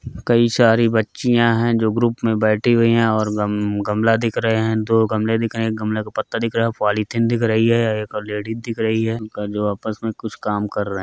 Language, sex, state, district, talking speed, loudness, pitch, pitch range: Hindi, male, Bihar, Gopalganj, 240 wpm, -19 LUFS, 110 Hz, 105-115 Hz